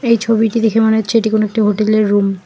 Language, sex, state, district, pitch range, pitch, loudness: Bengali, female, West Bengal, Alipurduar, 215-225 Hz, 220 Hz, -14 LUFS